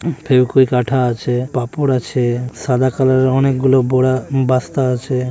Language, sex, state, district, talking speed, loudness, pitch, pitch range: Bengali, male, West Bengal, Malda, 135 wpm, -16 LUFS, 130 Hz, 125-135 Hz